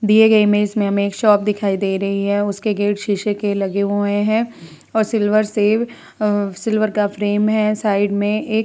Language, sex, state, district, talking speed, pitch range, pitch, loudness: Hindi, female, Uttar Pradesh, Muzaffarnagar, 185 wpm, 200-215 Hz, 205 Hz, -18 LUFS